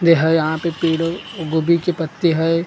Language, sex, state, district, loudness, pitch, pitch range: Hindi, male, Maharashtra, Gondia, -18 LUFS, 165 Hz, 160-170 Hz